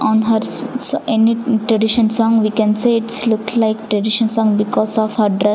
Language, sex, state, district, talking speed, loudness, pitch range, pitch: English, female, Punjab, Fazilka, 205 wpm, -16 LUFS, 215-230 Hz, 220 Hz